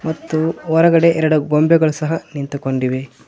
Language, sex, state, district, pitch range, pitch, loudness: Kannada, male, Karnataka, Koppal, 140-165 Hz, 155 Hz, -16 LUFS